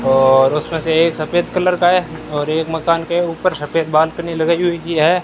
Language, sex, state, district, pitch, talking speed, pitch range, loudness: Hindi, male, Rajasthan, Bikaner, 165 Hz, 205 wpm, 155-175 Hz, -16 LUFS